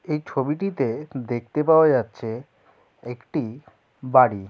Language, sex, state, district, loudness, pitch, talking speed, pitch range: Bengali, male, West Bengal, Jalpaiguri, -22 LUFS, 130 Hz, 95 wpm, 120-150 Hz